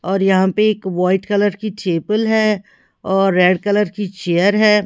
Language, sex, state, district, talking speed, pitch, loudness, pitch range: Hindi, female, Haryana, Charkhi Dadri, 185 wpm, 200 Hz, -16 LUFS, 185-210 Hz